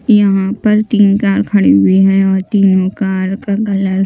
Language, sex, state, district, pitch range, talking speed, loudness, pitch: Hindi, female, Maharashtra, Mumbai Suburban, 190-205 Hz, 190 wpm, -12 LUFS, 195 Hz